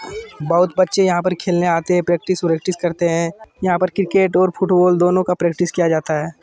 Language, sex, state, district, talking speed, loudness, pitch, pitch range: Hindi, male, Bihar, Jamui, 205 wpm, -17 LUFS, 180 Hz, 170-185 Hz